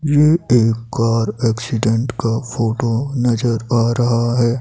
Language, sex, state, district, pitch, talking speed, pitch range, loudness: Hindi, male, Himachal Pradesh, Shimla, 120 Hz, 130 wpm, 115-120 Hz, -17 LUFS